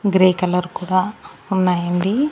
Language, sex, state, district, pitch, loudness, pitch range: Telugu, female, Andhra Pradesh, Annamaya, 185 Hz, -19 LUFS, 180-195 Hz